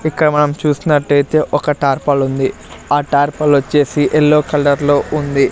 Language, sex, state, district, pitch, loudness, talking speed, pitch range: Telugu, male, Andhra Pradesh, Sri Satya Sai, 145 Hz, -14 LUFS, 140 wpm, 140-150 Hz